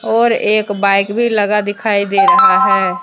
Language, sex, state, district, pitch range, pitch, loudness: Hindi, female, Jharkhand, Deoghar, 205-235 Hz, 215 Hz, -12 LUFS